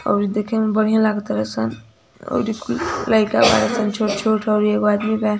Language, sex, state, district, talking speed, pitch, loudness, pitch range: Hindi, female, Uttar Pradesh, Ghazipur, 190 wpm, 210 Hz, -19 LUFS, 205-215 Hz